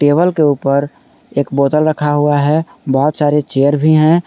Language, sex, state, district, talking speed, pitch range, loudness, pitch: Hindi, male, Jharkhand, Garhwa, 180 wpm, 140-155 Hz, -14 LUFS, 145 Hz